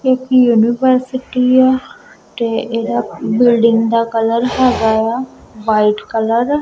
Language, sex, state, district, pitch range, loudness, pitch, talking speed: Punjabi, female, Punjab, Kapurthala, 225-255 Hz, -14 LUFS, 235 Hz, 125 wpm